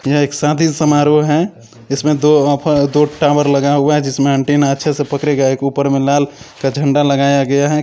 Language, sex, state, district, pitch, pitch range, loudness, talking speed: Maithili, male, Bihar, Samastipur, 145 Hz, 140-150 Hz, -14 LUFS, 215 wpm